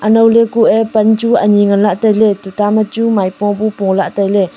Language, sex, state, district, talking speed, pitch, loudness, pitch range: Wancho, female, Arunachal Pradesh, Longding, 210 wpm, 210 Hz, -12 LUFS, 200-225 Hz